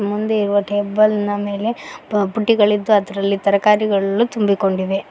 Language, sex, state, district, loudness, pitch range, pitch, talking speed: Kannada, female, Karnataka, Koppal, -17 LUFS, 200-215 Hz, 205 Hz, 105 wpm